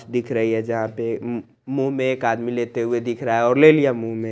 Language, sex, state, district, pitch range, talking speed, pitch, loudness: Hindi, male, Chandigarh, Chandigarh, 115-130 Hz, 265 wpm, 120 Hz, -20 LUFS